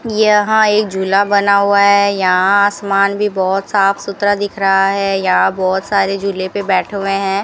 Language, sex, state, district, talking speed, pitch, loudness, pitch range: Hindi, female, Rajasthan, Bikaner, 185 wpm, 200 Hz, -14 LUFS, 195-200 Hz